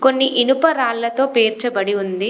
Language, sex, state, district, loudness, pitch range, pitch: Telugu, female, Telangana, Komaram Bheem, -17 LUFS, 220-265 Hz, 245 Hz